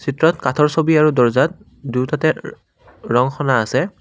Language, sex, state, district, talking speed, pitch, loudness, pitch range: Assamese, male, Assam, Kamrup Metropolitan, 135 wpm, 145 Hz, -17 LUFS, 130-155 Hz